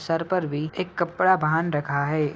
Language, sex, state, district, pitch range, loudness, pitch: Hindi, male, Uttar Pradesh, Ghazipur, 150-175 Hz, -24 LUFS, 160 Hz